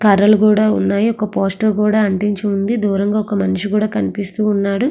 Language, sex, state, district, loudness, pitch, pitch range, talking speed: Telugu, female, Andhra Pradesh, Srikakulam, -16 LUFS, 210 Hz, 200-215 Hz, 145 wpm